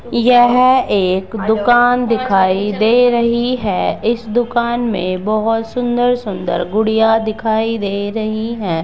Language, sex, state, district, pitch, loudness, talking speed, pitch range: Hindi, female, Bihar, Begusarai, 225 Hz, -15 LUFS, 120 wpm, 205-240 Hz